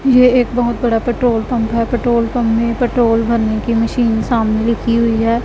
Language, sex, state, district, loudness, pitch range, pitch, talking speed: Hindi, female, Punjab, Pathankot, -15 LUFS, 225-240 Hz, 235 Hz, 200 wpm